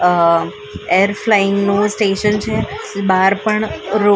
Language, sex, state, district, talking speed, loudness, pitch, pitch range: Gujarati, female, Maharashtra, Mumbai Suburban, 145 wpm, -15 LUFS, 200 Hz, 185-210 Hz